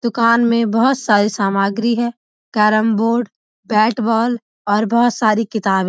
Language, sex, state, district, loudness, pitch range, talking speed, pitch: Hindi, female, Uttarakhand, Uttarkashi, -16 LUFS, 210-235 Hz, 130 wpm, 225 Hz